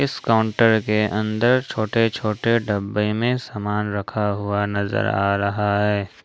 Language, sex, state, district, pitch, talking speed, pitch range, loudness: Hindi, male, Jharkhand, Ranchi, 105 Hz, 145 wpm, 100-115 Hz, -21 LUFS